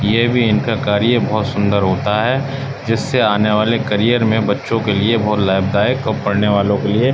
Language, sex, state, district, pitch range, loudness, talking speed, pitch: Hindi, male, Uttar Pradesh, Budaun, 105-120 Hz, -16 LUFS, 200 wpm, 110 Hz